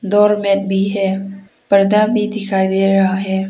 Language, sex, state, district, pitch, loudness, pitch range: Hindi, female, Arunachal Pradesh, Papum Pare, 195 Hz, -15 LUFS, 195-205 Hz